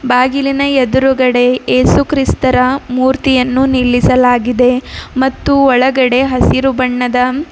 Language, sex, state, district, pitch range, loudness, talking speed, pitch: Kannada, female, Karnataka, Bidar, 250-270 Hz, -11 LUFS, 70 wpm, 255 Hz